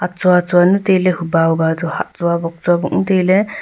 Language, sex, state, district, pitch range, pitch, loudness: Wancho, female, Arunachal Pradesh, Longding, 165-185 Hz, 175 Hz, -15 LUFS